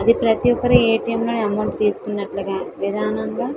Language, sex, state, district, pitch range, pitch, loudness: Telugu, female, Andhra Pradesh, Visakhapatnam, 195-230 Hz, 210 Hz, -20 LUFS